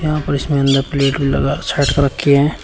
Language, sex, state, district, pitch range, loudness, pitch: Hindi, male, Uttar Pradesh, Shamli, 135-145 Hz, -16 LUFS, 140 Hz